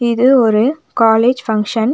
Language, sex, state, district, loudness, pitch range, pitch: Tamil, female, Tamil Nadu, Nilgiris, -13 LUFS, 220-255 Hz, 230 Hz